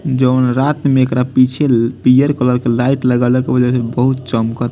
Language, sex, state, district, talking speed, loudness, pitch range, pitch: Bhojpuri, male, Bihar, Muzaffarpur, 205 wpm, -14 LUFS, 125-130 Hz, 125 Hz